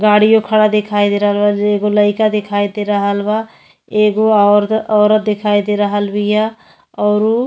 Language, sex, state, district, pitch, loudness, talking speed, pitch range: Bhojpuri, female, Uttar Pradesh, Deoria, 210 Hz, -14 LUFS, 175 wpm, 205-215 Hz